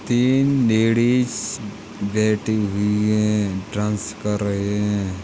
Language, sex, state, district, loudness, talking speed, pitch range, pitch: Hindi, male, Uttar Pradesh, Hamirpur, -20 LUFS, 105 wpm, 105-110 Hz, 105 Hz